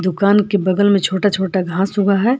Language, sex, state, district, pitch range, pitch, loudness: Hindi, female, Jharkhand, Palamu, 190-205 Hz, 200 Hz, -16 LUFS